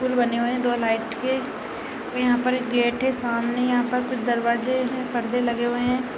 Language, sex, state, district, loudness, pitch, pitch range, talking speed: Hindi, female, Uttar Pradesh, Ghazipur, -24 LUFS, 245 Hz, 240-255 Hz, 225 wpm